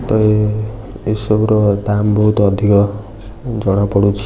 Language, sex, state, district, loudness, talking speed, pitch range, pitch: Odia, male, Odisha, Nuapada, -15 LUFS, 100 wpm, 100-110 Hz, 105 Hz